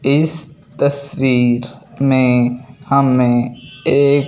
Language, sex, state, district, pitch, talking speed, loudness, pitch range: Hindi, male, Punjab, Fazilka, 135 Hz, 70 wpm, -16 LUFS, 125-140 Hz